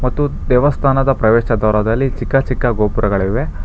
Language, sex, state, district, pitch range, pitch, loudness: Kannada, male, Karnataka, Bangalore, 110-135 Hz, 120 Hz, -15 LUFS